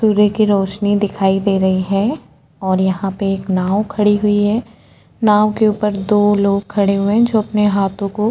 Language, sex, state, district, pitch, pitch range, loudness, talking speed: Hindi, female, Maharashtra, Chandrapur, 205 Hz, 195-210 Hz, -16 LUFS, 200 wpm